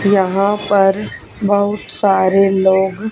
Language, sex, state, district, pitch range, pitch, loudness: Hindi, female, Haryana, Charkhi Dadri, 190-205 Hz, 195 Hz, -14 LUFS